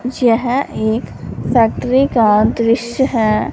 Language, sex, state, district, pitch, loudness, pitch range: Hindi, female, Punjab, Fazilka, 235 Hz, -15 LUFS, 225-250 Hz